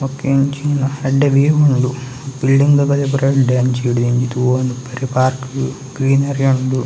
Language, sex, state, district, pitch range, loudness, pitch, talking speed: Tulu, male, Karnataka, Dakshina Kannada, 130-140 Hz, -16 LUFS, 135 Hz, 130 wpm